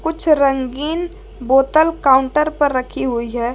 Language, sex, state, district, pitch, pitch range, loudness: Hindi, female, Jharkhand, Garhwa, 285 Hz, 260-315 Hz, -16 LUFS